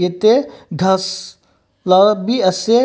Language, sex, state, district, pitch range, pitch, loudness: Nagamese, male, Nagaland, Kohima, 180-220 Hz, 190 Hz, -15 LUFS